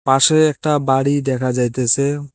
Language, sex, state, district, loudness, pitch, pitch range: Bengali, male, West Bengal, Cooch Behar, -16 LUFS, 135 Hz, 130-145 Hz